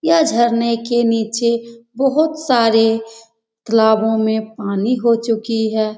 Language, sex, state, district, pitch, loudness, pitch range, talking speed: Hindi, female, Bihar, Jamui, 230 Hz, -16 LUFS, 225-235 Hz, 120 wpm